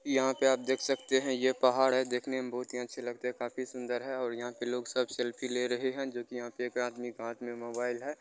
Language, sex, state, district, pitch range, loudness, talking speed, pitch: Maithili, male, Bihar, Begusarai, 120-130 Hz, -33 LUFS, 285 wpm, 125 Hz